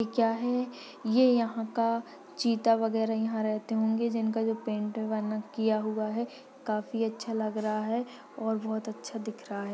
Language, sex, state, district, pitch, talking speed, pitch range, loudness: Hindi, male, Maharashtra, Dhule, 225 Hz, 170 wpm, 220-230 Hz, -30 LUFS